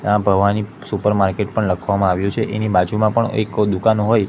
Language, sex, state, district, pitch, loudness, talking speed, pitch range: Gujarati, male, Gujarat, Gandhinagar, 105 Hz, -18 LUFS, 180 wpm, 100-110 Hz